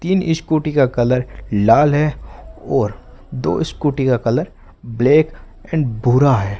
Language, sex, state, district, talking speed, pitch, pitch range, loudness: Hindi, male, Rajasthan, Bikaner, 135 wpm, 135 Hz, 120-150 Hz, -17 LUFS